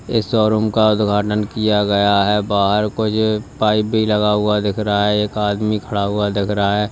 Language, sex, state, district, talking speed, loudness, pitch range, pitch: Hindi, male, Uttar Pradesh, Lalitpur, 200 wpm, -17 LUFS, 105-110 Hz, 105 Hz